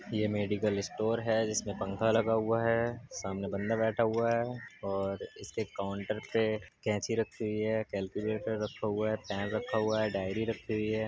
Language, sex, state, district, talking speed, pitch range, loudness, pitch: Hindi, male, Uttar Pradesh, Budaun, 190 wpm, 105-110 Hz, -33 LUFS, 110 Hz